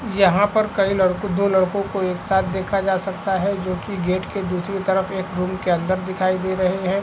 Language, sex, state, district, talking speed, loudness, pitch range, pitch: Hindi, male, Chhattisgarh, Rajnandgaon, 230 wpm, -21 LUFS, 185-195 Hz, 190 Hz